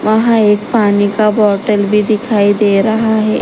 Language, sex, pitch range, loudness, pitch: Hindi, female, 205-220 Hz, -12 LUFS, 210 Hz